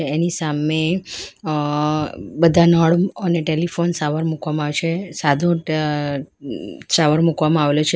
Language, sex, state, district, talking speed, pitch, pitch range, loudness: Gujarati, female, Gujarat, Valsad, 130 wpm, 160 Hz, 150-170 Hz, -19 LUFS